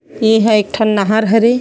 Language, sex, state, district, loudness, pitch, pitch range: Chhattisgarhi, female, Chhattisgarh, Sarguja, -13 LUFS, 220 Hz, 215-225 Hz